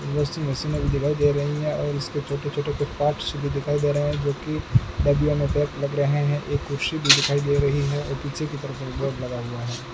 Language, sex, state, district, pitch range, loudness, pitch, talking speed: Hindi, male, Rajasthan, Bikaner, 140-145 Hz, -24 LUFS, 145 Hz, 240 wpm